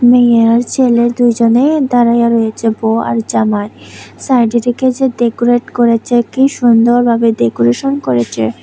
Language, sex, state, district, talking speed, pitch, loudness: Bengali, female, Tripura, West Tripura, 140 wpm, 235 Hz, -11 LUFS